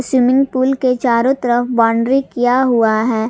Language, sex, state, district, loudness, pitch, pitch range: Hindi, female, Jharkhand, Garhwa, -14 LUFS, 245 Hz, 235-260 Hz